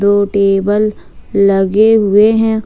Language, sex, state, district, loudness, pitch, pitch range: Hindi, female, Jharkhand, Ranchi, -11 LUFS, 205 Hz, 200-215 Hz